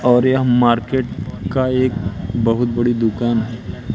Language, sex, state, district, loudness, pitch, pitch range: Hindi, male, Madhya Pradesh, Katni, -18 LUFS, 120 Hz, 115-125 Hz